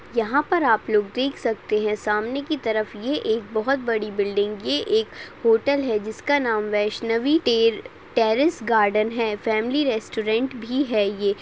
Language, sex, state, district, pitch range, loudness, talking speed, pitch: Hindi, female, Maharashtra, Solapur, 215-280 Hz, -22 LUFS, 165 wpm, 225 Hz